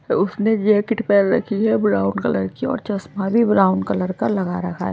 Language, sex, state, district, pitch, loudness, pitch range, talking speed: Hindi, male, Odisha, Malkangiri, 195 Hz, -19 LUFS, 180-210 Hz, 195 wpm